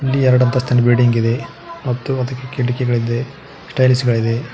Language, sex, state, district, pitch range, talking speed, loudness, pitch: Kannada, male, Karnataka, Koppal, 120-130 Hz, 120 wpm, -17 LUFS, 125 Hz